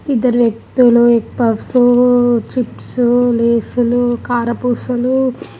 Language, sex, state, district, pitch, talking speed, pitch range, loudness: Telugu, female, Andhra Pradesh, Guntur, 245 Hz, 95 wpm, 235-250 Hz, -14 LUFS